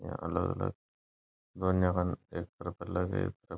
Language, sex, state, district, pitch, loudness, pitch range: Marwari, male, Rajasthan, Nagaur, 90 Hz, -34 LUFS, 85-95 Hz